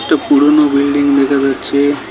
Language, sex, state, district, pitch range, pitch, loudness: Bengali, male, West Bengal, Cooch Behar, 140-145 Hz, 140 Hz, -12 LUFS